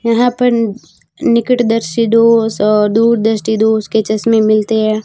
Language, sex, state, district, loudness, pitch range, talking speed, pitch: Hindi, female, Rajasthan, Barmer, -12 LUFS, 215-230 Hz, 155 wpm, 225 Hz